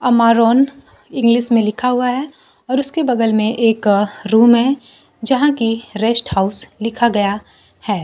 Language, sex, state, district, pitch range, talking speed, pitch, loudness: Hindi, female, Bihar, Kaimur, 220-250 Hz, 150 wpm, 230 Hz, -15 LUFS